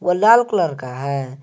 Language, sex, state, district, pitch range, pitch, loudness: Hindi, male, Jharkhand, Garhwa, 135-185 Hz, 140 Hz, -17 LUFS